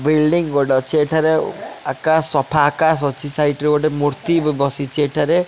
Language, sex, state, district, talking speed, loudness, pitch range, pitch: Odia, male, Odisha, Khordha, 165 wpm, -17 LUFS, 145-155 Hz, 150 Hz